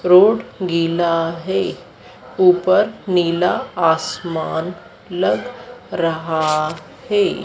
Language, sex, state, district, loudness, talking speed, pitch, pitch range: Hindi, female, Madhya Pradesh, Dhar, -18 LUFS, 70 wpm, 170 Hz, 160-180 Hz